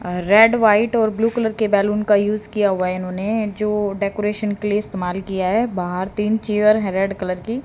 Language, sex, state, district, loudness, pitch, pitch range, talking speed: Hindi, female, Haryana, Charkhi Dadri, -19 LUFS, 210 Hz, 195-215 Hz, 220 wpm